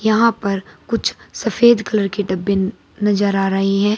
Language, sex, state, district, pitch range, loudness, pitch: Hindi, female, Uttar Pradesh, Saharanpur, 195-220 Hz, -18 LUFS, 205 Hz